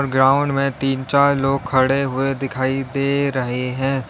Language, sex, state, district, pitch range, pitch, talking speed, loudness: Hindi, male, Uttar Pradesh, Lalitpur, 130-140 Hz, 135 Hz, 160 wpm, -19 LUFS